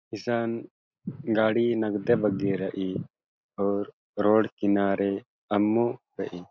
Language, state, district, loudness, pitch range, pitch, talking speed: Kurukh, Chhattisgarh, Jashpur, -27 LUFS, 100-115 Hz, 105 Hz, 90 wpm